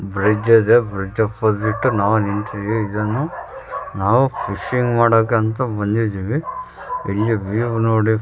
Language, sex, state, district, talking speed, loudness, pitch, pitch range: Kannada, male, Karnataka, Raichur, 110 wpm, -18 LUFS, 110 Hz, 105-120 Hz